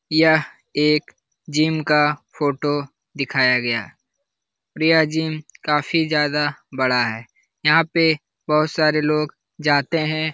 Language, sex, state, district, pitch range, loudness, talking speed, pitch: Hindi, male, Bihar, Lakhisarai, 145-155 Hz, -20 LUFS, 130 wpm, 150 Hz